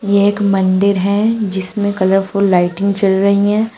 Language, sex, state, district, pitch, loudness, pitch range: Hindi, female, Uttar Pradesh, Shamli, 200 Hz, -14 LUFS, 190-205 Hz